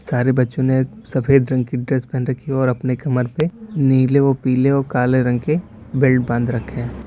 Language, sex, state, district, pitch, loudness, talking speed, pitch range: Hindi, male, Uttar Pradesh, Lalitpur, 130 Hz, -18 LUFS, 205 wpm, 125-135 Hz